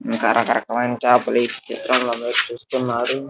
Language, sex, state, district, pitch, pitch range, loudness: Telugu, male, Andhra Pradesh, Guntur, 120 Hz, 120-125 Hz, -20 LUFS